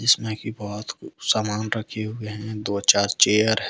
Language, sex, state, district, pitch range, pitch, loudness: Hindi, male, Jharkhand, Deoghar, 105-110 Hz, 110 Hz, -22 LUFS